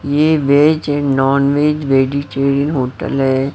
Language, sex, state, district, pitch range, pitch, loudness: Hindi, female, Maharashtra, Mumbai Suburban, 135-145 Hz, 140 Hz, -14 LUFS